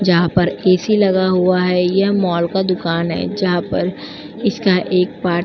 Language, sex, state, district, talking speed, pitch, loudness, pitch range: Hindi, female, Uttar Pradesh, Jyotiba Phule Nagar, 185 wpm, 185 Hz, -16 LUFS, 180-190 Hz